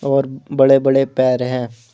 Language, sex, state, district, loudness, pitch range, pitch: Hindi, male, Jharkhand, Deoghar, -16 LUFS, 125-135 Hz, 135 Hz